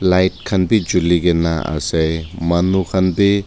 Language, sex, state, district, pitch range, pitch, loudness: Nagamese, male, Nagaland, Dimapur, 85-95 Hz, 90 Hz, -17 LUFS